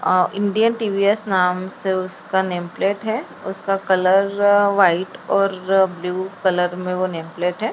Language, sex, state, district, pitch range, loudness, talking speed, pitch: Hindi, female, Maharashtra, Chandrapur, 180-200 Hz, -19 LUFS, 170 wpm, 190 Hz